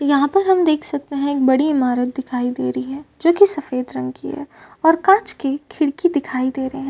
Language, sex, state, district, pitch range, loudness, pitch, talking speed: Hindi, female, Maharashtra, Chandrapur, 260-315 Hz, -18 LUFS, 280 Hz, 225 wpm